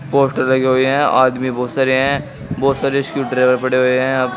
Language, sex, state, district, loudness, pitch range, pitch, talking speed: Hindi, male, Uttar Pradesh, Shamli, -16 LUFS, 130-135 Hz, 130 Hz, 205 wpm